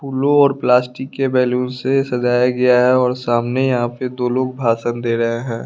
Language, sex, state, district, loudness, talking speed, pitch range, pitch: Hindi, male, Bihar, West Champaran, -17 LUFS, 200 wpm, 120-130 Hz, 125 Hz